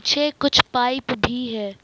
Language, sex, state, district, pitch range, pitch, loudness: Hindi, male, Jharkhand, Ranchi, 245-285 Hz, 250 Hz, -20 LUFS